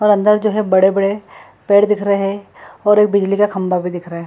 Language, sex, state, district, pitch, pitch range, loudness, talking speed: Hindi, female, Bihar, Lakhisarai, 200 Hz, 190-210 Hz, -15 LUFS, 255 wpm